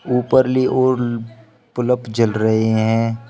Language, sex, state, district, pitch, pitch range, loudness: Hindi, male, Uttar Pradesh, Shamli, 120 Hz, 110-125 Hz, -17 LUFS